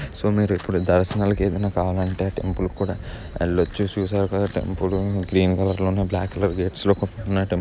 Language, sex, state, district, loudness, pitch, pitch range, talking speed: Telugu, male, Andhra Pradesh, Chittoor, -23 LUFS, 95 Hz, 90-100 Hz, 175 wpm